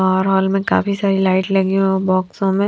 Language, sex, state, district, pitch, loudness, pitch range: Hindi, female, Himachal Pradesh, Shimla, 190 Hz, -17 LUFS, 190-195 Hz